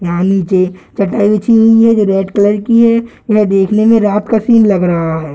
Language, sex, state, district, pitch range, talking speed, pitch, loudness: Hindi, male, Bihar, Gaya, 190-225 Hz, 225 wpm, 205 Hz, -11 LUFS